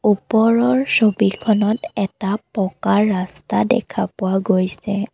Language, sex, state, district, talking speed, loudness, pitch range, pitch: Assamese, female, Assam, Kamrup Metropolitan, 95 wpm, -18 LUFS, 195-220 Hz, 205 Hz